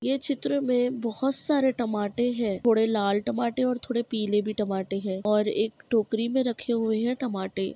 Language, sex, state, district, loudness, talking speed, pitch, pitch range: Hindi, female, Bihar, Madhepura, -26 LUFS, 185 wpm, 230 Hz, 210-250 Hz